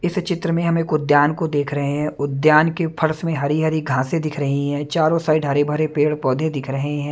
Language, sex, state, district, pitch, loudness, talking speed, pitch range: Hindi, male, Maharashtra, Mumbai Suburban, 155 Hz, -19 LUFS, 245 wpm, 145-160 Hz